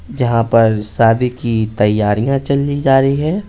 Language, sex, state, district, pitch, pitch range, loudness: Hindi, male, Bihar, Patna, 120 Hz, 110-135 Hz, -14 LUFS